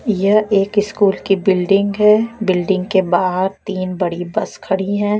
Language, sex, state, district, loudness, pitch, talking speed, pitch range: Hindi, female, Bihar, West Champaran, -16 LUFS, 195 Hz, 160 wpm, 185-205 Hz